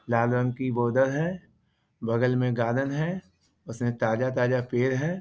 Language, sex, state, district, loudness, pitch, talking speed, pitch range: Hindi, male, Bihar, Vaishali, -26 LUFS, 125 Hz, 150 wpm, 120-135 Hz